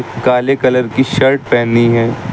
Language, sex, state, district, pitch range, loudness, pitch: Hindi, male, Uttar Pradesh, Lucknow, 115-135 Hz, -13 LUFS, 125 Hz